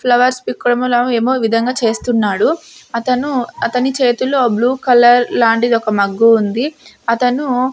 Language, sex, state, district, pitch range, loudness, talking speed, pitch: Telugu, female, Andhra Pradesh, Sri Satya Sai, 230-255 Hz, -14 LUFS, 125 wpm, 245 Hz